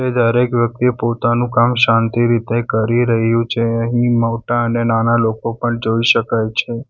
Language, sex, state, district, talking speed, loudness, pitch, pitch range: Gujarati, male, Gujarat, Valsad, 155 wpm, -16 LUFS, 115 Hz, 115-120 Hz